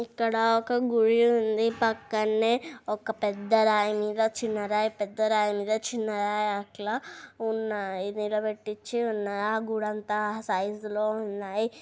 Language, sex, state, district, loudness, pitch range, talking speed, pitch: Telugu, female, Telangana, Nalgonda, -27 LUFS, 210-225 Hz, 135 wpm, 215 Hz